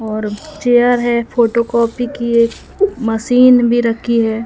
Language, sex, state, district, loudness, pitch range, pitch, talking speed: Hindi, female, Madhya Pradesh, Umaria, -14 LUFS, 230-245 Hz, 235 Hz, 135 wpm